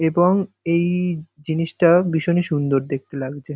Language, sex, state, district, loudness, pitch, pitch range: Bengali, male, West Bengal, North 24 Parganas, -20 LUFS, 165 Hz, 150-175 Hz